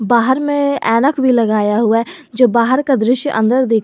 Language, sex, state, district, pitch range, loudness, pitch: Hindi, male, Jharkhand, Garhwa, 225-270 Hz, -14 LUFS, 245 Hz